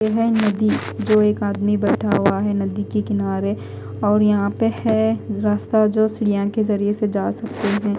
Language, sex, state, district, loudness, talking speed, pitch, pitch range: Hindi, female, Odisha, Khordha, -19 LUFS, 190 wpm, 210 Hz, 200-215 Hz